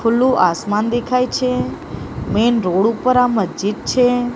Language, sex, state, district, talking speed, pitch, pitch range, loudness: Gujarati, female, Maharashtra, Mumbai Suburban, 140 wpm, 240 Hz, 215-250 Hz, -17 LUFS